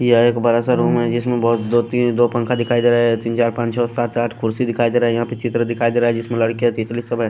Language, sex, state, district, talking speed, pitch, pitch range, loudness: Hindi, male, Delhi, New Delhi, 320 wpm, 120 Hz, 115-120 Hz, -18 LUFS